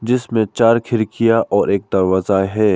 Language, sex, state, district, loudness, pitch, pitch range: Hindi, male, Arunachal Pradesh, Papum Pare, -16 LUFS, 110 Hz, 100-115 Hz